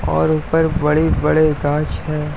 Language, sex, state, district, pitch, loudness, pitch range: Hindi, male, Uttar Pradesh, Etah, 150 Hz, -17 LUFS, 150-155 Hz